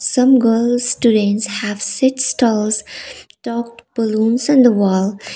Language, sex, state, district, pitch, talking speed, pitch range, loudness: English, female, Sikkim, Gangtok, 230 Hz, 125 wpm, 215-245 Hz, -15 LUFS